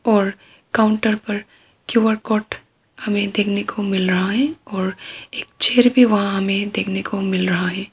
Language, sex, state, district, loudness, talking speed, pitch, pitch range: Hindi, female, Arunachal Pradesh, Papum Pare, -19 LUFS, 165 wpm, 205 Hz, 195-220 Hz